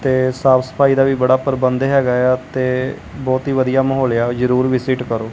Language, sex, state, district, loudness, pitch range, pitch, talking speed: Punjabi, male, Punjab, Kapurthala, -16 LUFS, 125-135 Hz, 130 Hz, 205 wpm